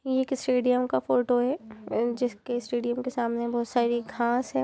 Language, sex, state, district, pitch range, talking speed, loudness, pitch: Hindi, female, Jharkhand, Jamtara, 235-250 Hz, 170 wpm, -27 LUFS, 240 Hz